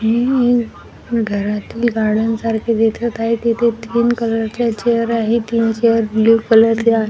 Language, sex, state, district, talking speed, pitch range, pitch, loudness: Marathi, female, Maharashtra, Washim, 150 wpm, 225-235 Hz, 230 Hz, -16 LUFS